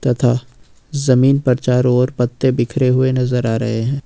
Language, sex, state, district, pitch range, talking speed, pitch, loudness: Hindi, male, Jharkhand, Ranchi, 120-130 Hz, 175 wpm, 125 Hz, -16 LUFS